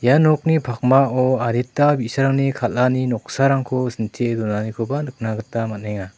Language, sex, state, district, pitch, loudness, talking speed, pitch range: Garo, male, Meghalaya, South Garo Hills, 125 Hz, -19 LUFS, 115 wpm, 115-135 Hz